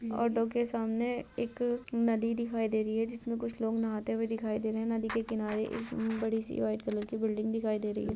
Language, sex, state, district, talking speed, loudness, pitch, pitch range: Hindi, female, Bihar, Madhepura, 220 wpm, -33 LUFS, 225 Hz, 220-230 Hz